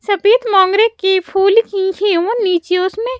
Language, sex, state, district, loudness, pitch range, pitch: Hindi, female, Madhya Pradesh, Bhopal, -14 LUFS, 380-445 Hz, 395 Hz